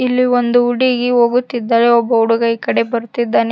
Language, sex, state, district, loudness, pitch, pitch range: Kannada, female, Karnataka, Koppal, -14 LUFS, 240 Hz, 230-245 Hz